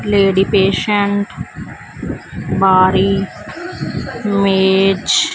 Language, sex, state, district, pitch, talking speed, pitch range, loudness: Punjabi, female, Punjab, Fazilka, 195 Hz, 45 wpm, 190-200 Hz, -15 LUFS